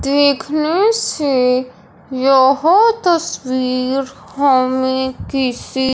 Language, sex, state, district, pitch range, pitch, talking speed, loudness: Hindi, male, Punjab, Fazilka, 260-300 Hz, 270 Hz, 60 wpm, -15 LUFS